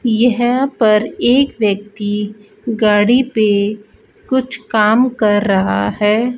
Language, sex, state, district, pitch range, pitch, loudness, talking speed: Hindi, female, Rajasthan, Bikaner, 210-245 Hz, 215 Hz, -15 LUFS, 105 wpm